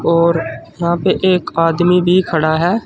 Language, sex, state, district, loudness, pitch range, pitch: Hindi, male, Uttar Pradesh, Saharanpur, -14 LUFS, 165-180 Hz, 170 Hz